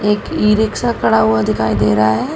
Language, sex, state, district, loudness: Hindi, female, Uttar Pradesh, Gorakhpur, -14 LUFS